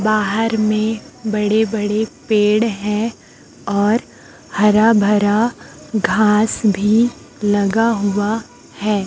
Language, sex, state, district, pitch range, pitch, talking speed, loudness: Hindi, female, Chhattisgarh, Raipur, 205-220 Hz, 215 Hz, 95 wpm, -17 LUFS